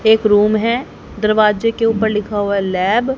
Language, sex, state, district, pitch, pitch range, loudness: Hindi, female, Haryana, Charkhi Dadri, 215 Hz, 210-230 Hz, -15 LUFS